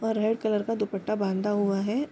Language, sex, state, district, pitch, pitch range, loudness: Hindi, female, Bihar, Darbhanga, 210 Hz, 200-220 Hz, -27 LUFS